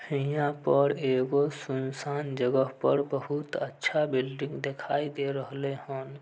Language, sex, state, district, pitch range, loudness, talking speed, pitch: Maithili, male, Bihar, Samastipur, 135-145 Hz, -29 LUFS, 125 wpm, 140 Hz